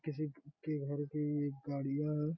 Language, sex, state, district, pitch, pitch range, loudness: Hindi, male, Bihar, Gopalganj, 150 Hz, 145-150 Hz, -39 LUFS